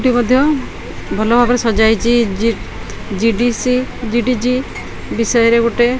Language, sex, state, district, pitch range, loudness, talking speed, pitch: Odia, female, Odisha, Khordha, 230-250 Hz, -15 LUFS, 90 wpm, 235 Hz